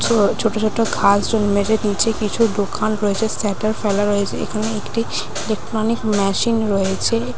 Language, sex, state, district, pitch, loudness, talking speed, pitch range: Bengali, female, West Bengal, Dakshin Dinajpur, 215 Hz, -19 LUFS, 115 wpm, 205-220 Hz